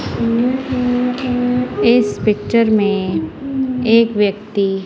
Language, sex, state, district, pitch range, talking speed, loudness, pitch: Hindi, female, Punjab, Kapurthala, 210-250 Hz, 100 wpm, -16 LUFS, 230 Hz